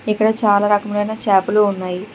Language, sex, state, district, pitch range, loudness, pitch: Telugu, female, Telangana, Hyderabad, 200-215 Hz, -17 LUFS, 205 Hz